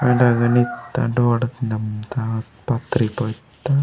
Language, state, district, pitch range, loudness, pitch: Gondi, Chhattisgarh, Sukma, 110-125 Hz, -21 LUFS, 120 Hz